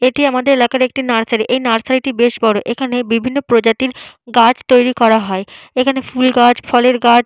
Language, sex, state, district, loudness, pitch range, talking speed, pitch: Bengali, female, Jharkhand, Jamtara, -13 LUFS, 230-255 Hz, 190 wpm, 245 Hz